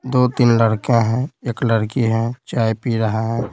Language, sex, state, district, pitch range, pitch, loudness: Hindi, male, Bihar, Patna, 115-125 Hz, 115 Hz, -18 LUFS